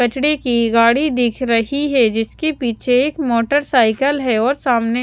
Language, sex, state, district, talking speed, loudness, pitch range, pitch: Hindi, female, Chandigarh, Chandigarh, 155 wpm, -16 LUFS, 230-285 Hz, 250 Hz